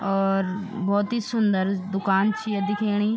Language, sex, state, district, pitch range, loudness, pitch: Garhwali, female, Uttarakhand, Tehri Garhwal, 195-210 Hz, -24 LUFS, 200 Hz